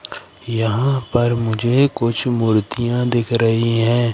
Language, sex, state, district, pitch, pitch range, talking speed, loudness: Hindi, male, Madhya Pradesh, Katni, 115 Hz, 115-120 Hz, 115 wpm, -18 LUFS